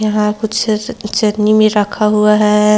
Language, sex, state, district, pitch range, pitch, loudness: Hindi, female, Chhattisgarh, Kabirdham, 210-215 Hz, 210 Hz, -13 LUFS